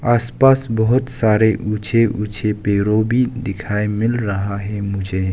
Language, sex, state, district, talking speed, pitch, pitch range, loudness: Hindi, male, Arunachal Pradesh, Lower Dibang Valley, 145 wpm, 105 Hz, 100-120 Hz, -18 LUFS